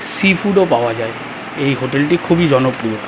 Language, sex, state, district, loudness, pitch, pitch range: Bengali, male, West Bengal, Kolkata, -15 LUFS, 140 Hz, 125-175 Hz